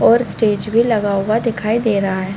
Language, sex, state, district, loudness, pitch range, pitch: Hindi, female, Chhattisgarh, Bilaspur, -16 LUFS, 200-225 Hz, 215 Hz